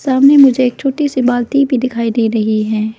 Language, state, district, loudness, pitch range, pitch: Hindi, Arunachal Pradesh, Lower Dibang Valley, -13 LUFS, 230-270 Hz, 250 Hz